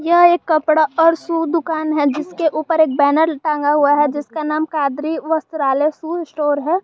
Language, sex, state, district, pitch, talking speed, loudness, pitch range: Hindi, male, Jharkhand, Garhwa, 310 Hz, 185 wpm, -17 LUFS, 295-325 Hz